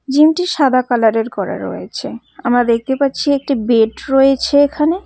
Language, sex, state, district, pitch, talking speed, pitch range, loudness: Bengali, female, West Bengal, Cooch Behar, 270 Hz, 165 wpm, 240-285 Hz, -15 LUFS